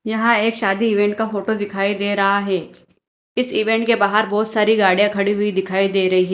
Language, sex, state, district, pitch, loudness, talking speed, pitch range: Hindi, female, Punjab, Fazilka, 205 Hz, -17 LUFS, 210 wpm, 195-220 Hz